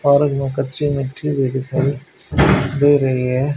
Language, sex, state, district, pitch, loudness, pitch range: Hindi, male, Haryana, Charkhi Dadri, 140 Hz, -18 LUFS, 130-145 Hz